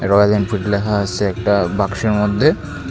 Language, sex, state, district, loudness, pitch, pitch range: Bengali, male, Tripura, Unakoti, -17 LUFS, 105 Hz, 100-105 Hz